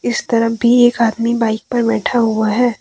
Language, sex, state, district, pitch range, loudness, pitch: Hindi, female, Jharkhand, Deoghar, 220-240 Hz, -15 LUFS, 230 Hz